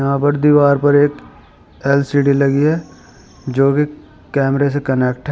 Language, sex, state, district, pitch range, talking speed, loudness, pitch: Hindi, male, Uttar Pradesh, Shamli, 135-145 Hz, 160 wpm, -15 LUFS, 140 Hz